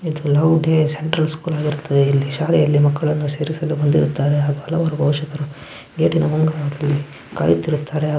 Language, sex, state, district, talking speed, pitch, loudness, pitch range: Kannada, male, Karnataka, Belgaum, 125 wpm, 150 Hz, -18 LUFS, 145-155 Hz